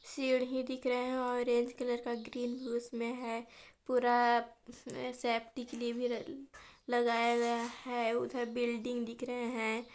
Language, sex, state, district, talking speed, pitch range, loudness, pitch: Hindi, female, Chhattisgarh, Balrampur, 150 wpm, 235-250 Hz, -35 LUFS, 240 Hz